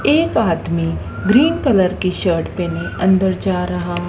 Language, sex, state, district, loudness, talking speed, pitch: Hindi, female, Madhya Pradesh, Dhar, -17 LUFS, 145 wpm, 180 Hz